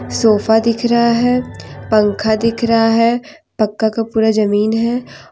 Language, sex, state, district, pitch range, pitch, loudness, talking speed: Hindi, female, Jharkhand, Deoghar, 220-235 Hz, 225 Hz, -15 LUFS, 145 wpm